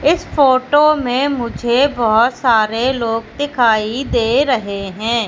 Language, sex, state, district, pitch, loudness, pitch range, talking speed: Hindi, female, Madhya Pradesh, Katni, 240 Hz, -15 LUFS, 225-275 Hz, 125 wpm